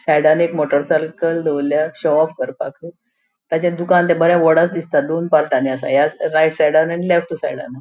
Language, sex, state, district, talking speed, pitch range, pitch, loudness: Konkani, female, Goa, North and South Goa, 160 wpm, 155-170 Hz, 160 Hz, -16 LUFS